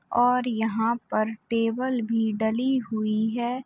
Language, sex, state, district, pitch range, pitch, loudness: Hindi, female, Uttar Pradesh, Hamirpur, 220-245 Hz, 230 Hz, -25 LUFS